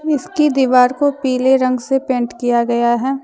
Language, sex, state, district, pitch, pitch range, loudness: Hindi, female, Jharkhand, Deoghar, 260 Hz, 245-275 Hz, -15 LUFS